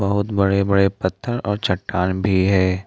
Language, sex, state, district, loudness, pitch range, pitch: Hindi, male, Jharkhand, Ranchi, -19 LUFS, 95-100 Hz, 100 Hz